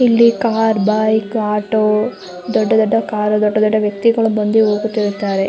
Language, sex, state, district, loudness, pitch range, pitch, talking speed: Kannada, female, Karnataka, Mysore, -15 LUFS, 210-225 Hz, 215 Hz, 140 wpm